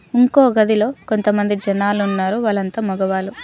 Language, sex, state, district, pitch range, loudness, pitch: Telugu, female, Telangana, Mahabubabad, 195-220 Hz, -17 LUFS, 205 Hz